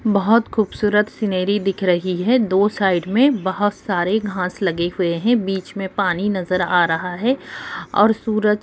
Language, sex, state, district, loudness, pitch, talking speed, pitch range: Hindi, female, Jharkhand, Sahebganj, -19 LUFS, 200 Hz, 165 wpm, 185-215 Hz